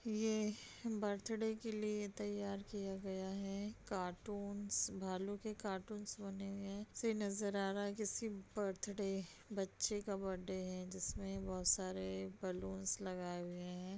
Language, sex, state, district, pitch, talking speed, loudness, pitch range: Hindi, female, Bihar, Begusarai, 200 Hz, 140 wpm, -43 LUFS, 190-210 Hz